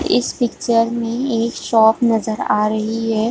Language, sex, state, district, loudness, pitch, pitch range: Hindi, female, Jharkhand, Sahebganj, -17 LUFS, 225 Hz, 220-235 Hz